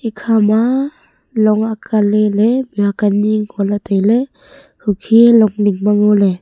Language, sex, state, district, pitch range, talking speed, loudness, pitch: Wancho, female, Arunachal Pradesh, Longding, 205-230 Hz, 120 wpm, -14 LUFS, 215 Hz